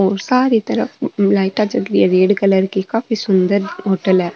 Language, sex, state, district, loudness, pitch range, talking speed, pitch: Marwari, female, Rajasthan, Nagaur, -16 LUFS, 190-215 Hz, 205 wpm, 195 Hz